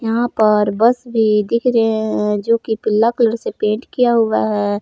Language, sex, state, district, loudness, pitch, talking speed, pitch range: Hindi, female, Jharkhand, Palamu, -16 LUFS, 220 Hz, 185 wpm, 210-235 Hz